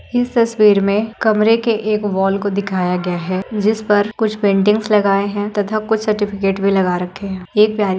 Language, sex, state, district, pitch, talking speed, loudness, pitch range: Hindi, female, Uttar Pradesh, Budaun, 205 Hz, 205 wpm, -16 LUFS, 195-215 Hz